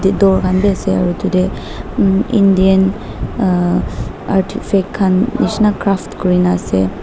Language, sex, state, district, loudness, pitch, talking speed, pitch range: Nagamese, female, Nagaland, Dimapur, -15 LUFS, 190 Hz, 155 wpm, 185-200 Hz